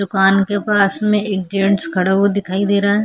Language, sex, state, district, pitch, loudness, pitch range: Hindi, female, Chhattisgarh, Kabirdham, 200 Hz, -16 LUFS, 195-205 Hz